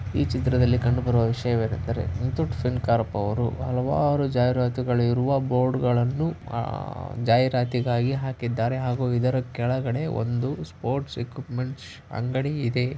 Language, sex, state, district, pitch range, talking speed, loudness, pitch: Kannada, male, Karnataka, Raichur, 120-130 Hz, 95 wpm, -25 LUFS, 125 Hz